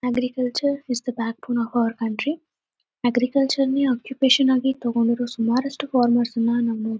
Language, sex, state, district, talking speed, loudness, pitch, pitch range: Kannada, female, Karnataka, Shimoga, 145 wpm, -22 LUFS, 245 Hz, 235-265 Hz